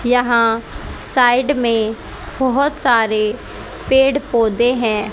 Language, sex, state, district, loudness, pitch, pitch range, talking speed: Hindi, female, Haryana, Charkhi Dadri, -16 LUFS, 240 Hz, 225-260 Hz, 95 wpm